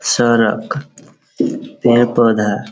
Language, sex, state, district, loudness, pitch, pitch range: Hindi, male, Bihar, Sitamarhi, -15 LUFS, 120 Hz, 110-120 Hz